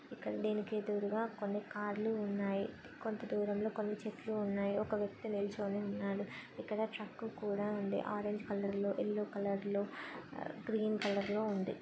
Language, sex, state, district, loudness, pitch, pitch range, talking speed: Telugu, female, Andhra Pradesh, Chittoor, -39 LUFS, 210 Hz, 200-215 Hz, 145 wpm